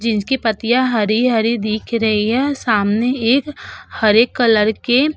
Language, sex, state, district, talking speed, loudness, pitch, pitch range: Hindi, female, Uttar Pradesh, Budaun, 140 wpm, -16 LUFS, 230 Hz, 220-255 Hz